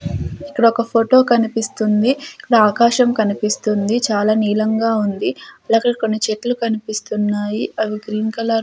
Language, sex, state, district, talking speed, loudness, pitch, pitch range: Telugu, female, Andhra Pradesh, Sri Satya Sai, 125 wpm, -17 LUFS, 220 Hz, 215-230 Hz